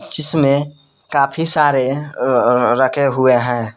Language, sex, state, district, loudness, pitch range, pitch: Hindi, male, Jharkhand, Palamu, -14 LUFS, 130-145 Hz, 140 Hz